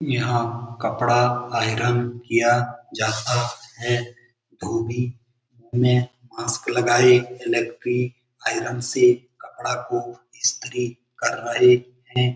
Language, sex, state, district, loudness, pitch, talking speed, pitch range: Hindi, male, Bihar, Lakhisarai, -22 LUFS, 120 Hz, 85 wpm, 120-125 Hz